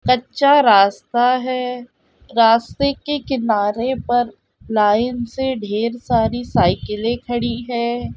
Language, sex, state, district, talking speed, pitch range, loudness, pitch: Hindi, female, Uttar Pradesh, Hamirpur, 120 wpm, 230-255 Hz, -18 LUFS, 240 Hz